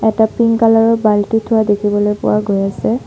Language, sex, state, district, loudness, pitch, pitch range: Assamese, female, Assam, Sonitpur, -14 LUFS, 220 Hz, 205-225 Hz